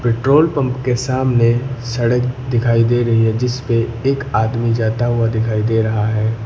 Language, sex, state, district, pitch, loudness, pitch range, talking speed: Hindi, male, Uttar Pradesh, Lucknow, 120 Hz, -16 LUFS, 115-125 Hz, 175 wpm